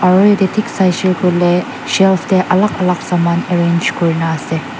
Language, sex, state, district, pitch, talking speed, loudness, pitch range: Nagamese, female, Nagaland, Dimapur, 180 Hz, 165 wpm, -14 LUFS, 170-190 Hz